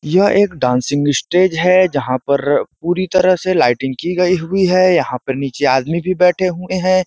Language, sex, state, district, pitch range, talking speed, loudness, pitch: Hindi, male, Uttar Pradesh, Ghazipur, 140-185 Hz, 195 wpm, -15 LUFS, 175 Hz